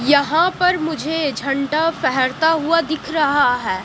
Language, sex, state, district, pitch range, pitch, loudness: Hindi, female, Haryana, Jhajjar, 275-325 Hz, 310 Hz, -18 LUFS